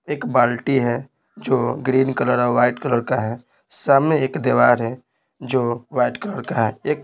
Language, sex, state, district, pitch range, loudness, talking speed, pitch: Hindi, male, Bihar, Patna, 120-135 Hz, -19 LUFS, 190 wpm, 125 Hz